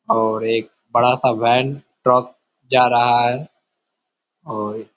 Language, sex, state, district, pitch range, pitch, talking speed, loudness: Hindi, male, Uttar Pradesh, Ghazipur, 115-125 Hz, 120 Hz, 135 wpm, -18 LUFS